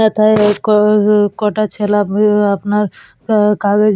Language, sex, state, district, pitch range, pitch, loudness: Bengali, female, West Bengal, Purulia, 205-210 Hz, 210 Hz, -13 LUFS